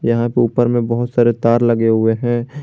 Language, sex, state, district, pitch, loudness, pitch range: Hindi, male, Jharkhand, Garhwa, 120 Hz, -15 LUFS, 115-120 Hz